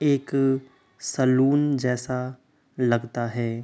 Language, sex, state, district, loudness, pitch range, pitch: Hindi, male, Uttar Pradesh, Hamirpur, -24 LUFS, 125-135 Hz, 130 Hz